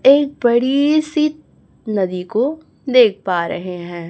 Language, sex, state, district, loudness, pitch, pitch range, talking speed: Hindi, female, Chhattisgarh, Raipur, -17 LUFS, 240 Hz, 180-285 Hz, 130 wpm